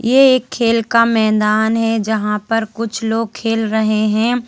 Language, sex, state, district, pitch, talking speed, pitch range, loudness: Hindi, female, Madhya Pradesh, Bhopal, 225 Hz, 175 wpm, 220-230 Hz, -15 LUFS